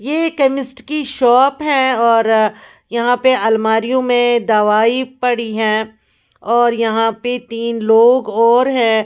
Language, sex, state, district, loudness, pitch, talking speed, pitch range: Hindi, female, Bihar, West Champaran, -14 LUFS, 235 Hz, 140 wpm, 225-260 Hz